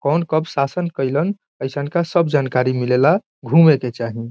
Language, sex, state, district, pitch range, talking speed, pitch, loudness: Bhojpuri, male, Bihar, Saran, 130-170 Hz, 165 wpm, 145 Hz, -18 LUFS